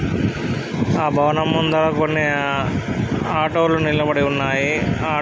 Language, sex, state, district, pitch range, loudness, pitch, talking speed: Telugu, male, Andhra Pradesh, Krishna, 140-155 Hz, -19 LUFS, 150 Hz, 90 wpm